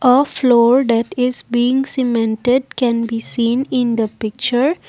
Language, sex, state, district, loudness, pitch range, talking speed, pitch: English, female, Assam, Kamrup Metropolitan, -16 LUFS, 230-255 Hz, 145 wpm, 245 Hz